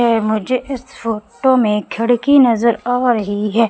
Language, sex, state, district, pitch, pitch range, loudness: Hindi, female, Madhya Pradesh, Umaria, 235 Hz, 220-250 Hz, -16 LUFS